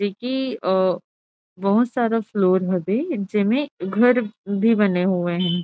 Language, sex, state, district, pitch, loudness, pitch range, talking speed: Chhattisgarhi, female, Chhattisgarh, Rajnandgaon, 205 Hz, -21 LUFS, 185-230 Hz, 130 wpm